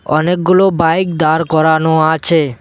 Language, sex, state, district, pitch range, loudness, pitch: Bengali, male, West Bengal, Cooch Behar, 155-170 Hz, -12 LUFS, 160 Hz